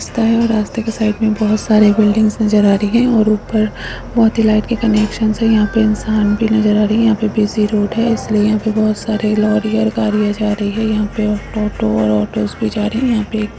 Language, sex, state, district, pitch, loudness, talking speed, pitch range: Bhojpuri, female, Uttar Pradesh, Gorakhpur, 215 Hz, -15 LUFS, 265 wpm, 210-220 Hz